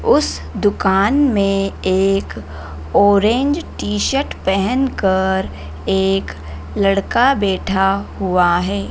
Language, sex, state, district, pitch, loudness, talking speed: Hindi, female, Madhya Pradesh, Dhar, 195 Hz, -17 LUFS, 80 wpm